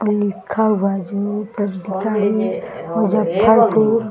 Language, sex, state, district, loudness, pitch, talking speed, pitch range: Hindi, female, Bihar, Muzaffarpur, -18 LUFS, 210 Hz, 60 wpm, 200-220 Hz